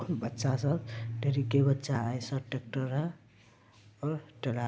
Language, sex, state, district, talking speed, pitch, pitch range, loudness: Hindi, male, Bihar, Araria, 140 wpm, 130 Hz, 115-140 Hz, -33 LUFS